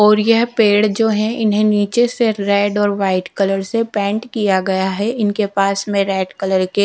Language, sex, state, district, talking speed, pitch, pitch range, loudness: Hindi, female, Punjab, Fazilka, 200 wpm, 205 Hz, 195-220 Hz, -16 LUFS